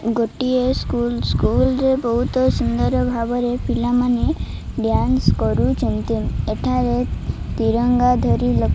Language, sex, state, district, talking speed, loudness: Odia, female, Odisha, Malkangiri, 105 wpm, -19 LUFS